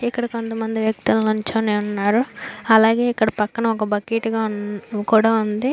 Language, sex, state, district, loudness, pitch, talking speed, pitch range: Telugu, female, Andhra Pradesh, Anantapur, -20 LUFS, 220 Hz, 145 wpm, 210-230 Hz